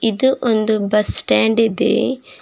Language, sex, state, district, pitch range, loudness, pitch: Kannada, female, Karnataka, Bidar, 215-240 Hz, -16 LUFS, 225 Hz